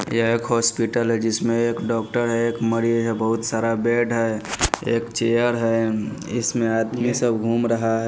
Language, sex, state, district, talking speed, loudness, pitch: Hindi, male, Punjab, Pathankot, 180 wpm, -21 LUFS, 115 Hz